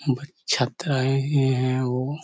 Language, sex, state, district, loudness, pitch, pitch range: Hindi, male, Chhattisgarh, Korba, -24 LUFS, 135 Hz, 130-140 Hz